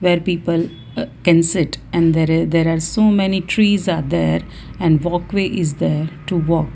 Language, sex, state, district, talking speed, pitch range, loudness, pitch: English, female, Gujarat, Valsad, 185 wpm, 160-185 Hz, -17 LUFS, 170 Hz